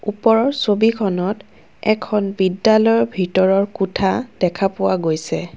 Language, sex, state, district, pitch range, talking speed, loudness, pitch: Assamese, female, Assam, Kamrup Metropolitan, 190-220 Hz, 95 wpm, -18 LUFS, 200 Hz